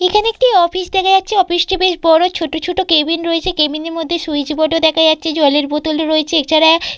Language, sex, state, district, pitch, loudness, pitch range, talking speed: Bengali, female, West Bengal, Purulia, 330 Hz, -14 LUFS, 315-365 Hz, 215 wpm